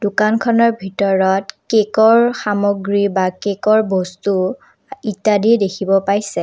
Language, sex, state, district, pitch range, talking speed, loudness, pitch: Assamese, female, Assam, Kamrup Metropolitan, 195-220 Hz, 95 wpm, -16 LUFS, 205 Hz